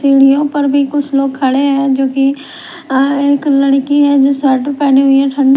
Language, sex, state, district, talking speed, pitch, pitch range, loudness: Hindi, female, Bihar, Patna, 205 wpm, 275 Hz, 270-285 Hz, -11 LUFS